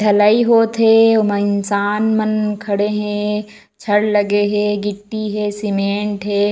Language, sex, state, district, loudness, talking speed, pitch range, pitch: Chhattisgarhi, female, Chhattisgarh, Raigarh, -16 LUFS, 130 wpm, 205-215 Hz, 210 Hz